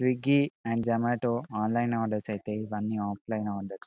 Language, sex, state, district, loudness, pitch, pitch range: Telugu, male, Telangana, Karimnagar, -30 LUFS, 110 Hz, 105-120 Hz